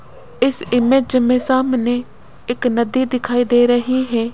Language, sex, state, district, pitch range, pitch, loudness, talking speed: Hindi, female, Rajasthan, Jaipur, 240-260 Hz, 245 Hz, -17 LUFS, 140 wpm